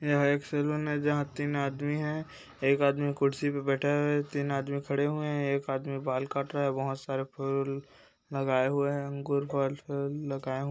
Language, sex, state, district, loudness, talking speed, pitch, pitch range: Hindi, male, Chhattisgarh, Bastar, -31 LUFS, 195 wpm, 140 Hz, 135-145 Hz